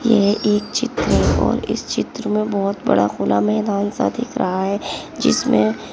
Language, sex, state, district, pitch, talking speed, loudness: Hindi, female, Uttarakhand, Tehri Garhwal, 200 Hz, 170 wpm, -19 LUFS